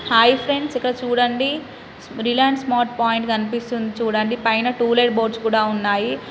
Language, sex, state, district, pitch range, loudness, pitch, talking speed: Telugu, female, Telangana, Karimnagar, 225-250 Hz, -19 LUFS, 235 Hz, 135 wpm